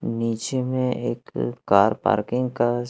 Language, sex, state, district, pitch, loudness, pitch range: Hindi, male, Madhya Pradesh, Katni, 115 Hz, -23 LUFS, 110-125 Hz